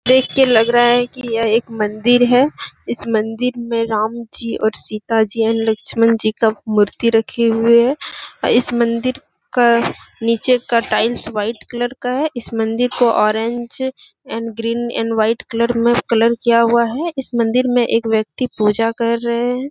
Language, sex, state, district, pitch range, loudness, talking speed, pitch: Hindi, female, Jharkhand, Sahebganj, 225-245 Hz, -16 LUFS, 180 wpm, 235 Hz